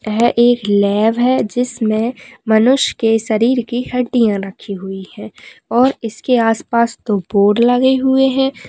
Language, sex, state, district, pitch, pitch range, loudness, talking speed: Hindi, female, Bihar, Kishanganj, 235 Hz, 215-250 Hz, -15 LUFS, 145 wpm